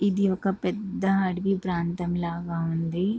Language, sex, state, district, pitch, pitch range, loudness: Telugu, female, Andhra Pradesh, Guntur, 185 Hz, 170-195 Hz, -27 LUFS